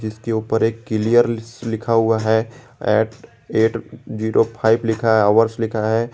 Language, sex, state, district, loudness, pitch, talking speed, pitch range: Hindi, male, Jharkhand, Garhwa, -19 LUFS, 115 Hz, 155 wpm, 110-115 Hz